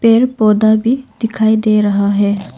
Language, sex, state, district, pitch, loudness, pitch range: Hindi, female, Arunachal Pradesh, Longding, 220 Hz, -13 LUFS, 210-225 Hz